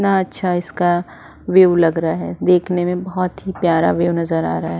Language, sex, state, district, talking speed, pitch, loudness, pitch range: Hindi, female, Uttar Pradesh, Jyotiba Phule Nagar, 210 wpm, 175 Hz, -17 LUFS, 165-185 Hz